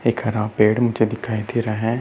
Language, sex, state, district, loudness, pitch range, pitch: Hindi, male, Uttar Pradesh, Muzaffarnagar, -20 LUFS, 110-120 Hz, 110 Hz